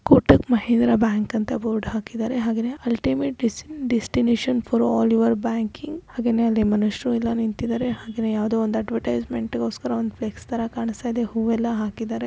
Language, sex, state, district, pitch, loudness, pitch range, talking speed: Kannada, female, Karnataka, Raichur, 230 Hz, -23 LUFS, 220-240 Hz, 150 wpm